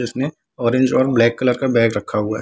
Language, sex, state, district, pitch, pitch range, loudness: Hindi, male, Bihar, Samastipur, 120 Hz, 115-130 Hz, -18 LUFS